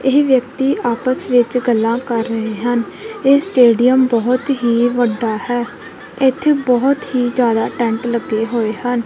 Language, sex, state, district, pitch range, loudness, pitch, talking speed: Punjabi, female, Punjab, Kapurthala, 235-260 Hz, -15 LUFS, 245 Hz, 145 wpm